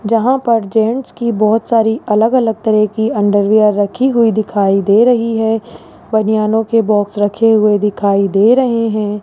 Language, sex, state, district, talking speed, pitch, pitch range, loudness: Hindi, male, Rajasthan, Jaipur, 165 wpm, 220 Hz, 210-230 Hz, -13 LUFS